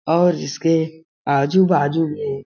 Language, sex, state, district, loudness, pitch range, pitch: Hindi, male, Chhattisgarh, Balrampur, -18 LUFS, 145-165 Hz, 160 Hz